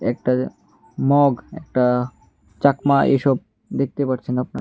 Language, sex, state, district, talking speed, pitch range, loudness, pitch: Bengali, male, Tripura, West Tripura, 115 wpm, 125-140 Hz, -20 LUFS, 130 Hz